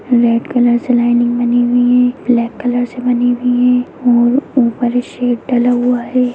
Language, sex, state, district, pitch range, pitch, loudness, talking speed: Hindi, female, Bihar, Begusarai, 240-250 Hz, 245 Hz, -13 LUFS, 180 wpm